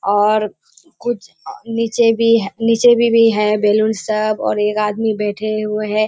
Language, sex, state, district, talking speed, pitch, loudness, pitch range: Hindi, female, Bihar, Kishanganj, 165 wpm, 215 Hz, -16 LUFS, 210-230 Hz